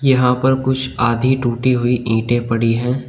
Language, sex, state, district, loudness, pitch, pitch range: Hindi, male, Uttar Pradesh, Shamli, -17 LUFS, 125 Hz, 120-130 Hz